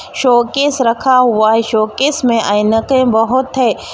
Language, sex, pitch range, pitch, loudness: Hindi, female, 225-260 Hz, 240 Hz, -13 LUFS